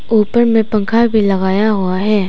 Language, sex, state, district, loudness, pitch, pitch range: Hindi, female, Arunachal Pradesh, Papum Pare, -13 LUFS, 210 Hz, 195-225 Hz